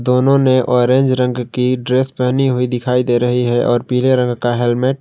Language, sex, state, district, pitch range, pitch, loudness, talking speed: Hindi, male, Jharkhand, Garhwa, 125-130 Hz, 125 Hz, -15 LUFS, 215 wpm